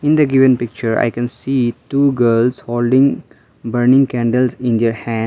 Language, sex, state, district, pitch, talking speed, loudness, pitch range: English, male, Mizoram, Aizawl, 120 Hz, 170 wpm, -15 LUFS, 120-130 Hz